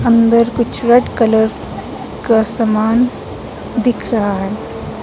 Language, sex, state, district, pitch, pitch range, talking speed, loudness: Hindi, female, Himachal Pradesh, Shimla, 230 Hz, 220-235 Hz, 105 wpm, -15 LUFS